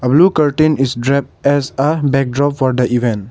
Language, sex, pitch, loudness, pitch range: English, male, 140 Hz, -14 LUFS, 130-145 Hz